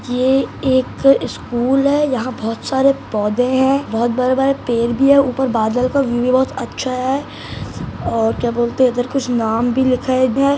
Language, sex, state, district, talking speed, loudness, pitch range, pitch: Maithili, male, Bihar, Saharsa, 185 wpm, -17 LUFS, 240-270 Hz, 255 Hz